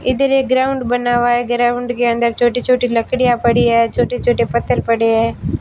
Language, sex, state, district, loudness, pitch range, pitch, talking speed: Hindi, female, Rajasthan, Barmer, -15 LUFS, 235-245 Hz, 240 Hz, 205 wpm